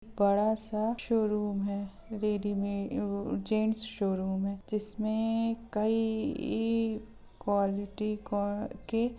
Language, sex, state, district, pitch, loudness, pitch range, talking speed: Hindi, female, Bihar, Gopalganj, 215 Hz, -32 LUFS, 200-225 Hz, 100 wpm